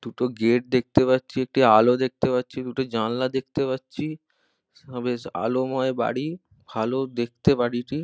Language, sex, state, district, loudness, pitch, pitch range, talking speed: Bengali, male, West Bengal, Malda, -24 LUFS, 130 Hz, 120-135 Hz, 135 wpm